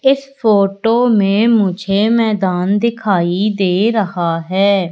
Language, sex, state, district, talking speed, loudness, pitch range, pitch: Hindi, female, Madhya Pradesh, Katni, 110 wpm, -14 LUFS, 190-225 Hz, 200 Hz